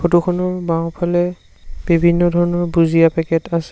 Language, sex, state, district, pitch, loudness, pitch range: Assamese, male, Assam, Sonitpur, 175 Hz, -16 LUFS, 165-175 Hz